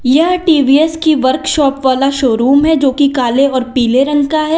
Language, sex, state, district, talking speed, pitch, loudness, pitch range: Hindi, female, Uttar Pradesh, Lalitpur, 195 wpm, 275 Hz, -11 LUFS, 260-310 Hz